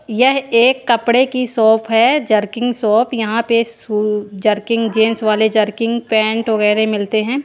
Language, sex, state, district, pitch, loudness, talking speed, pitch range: Hindi, female, Haryana, Jhajjar, 225 Hz, -15 LUFS, 155 wpm, 215-235 Hz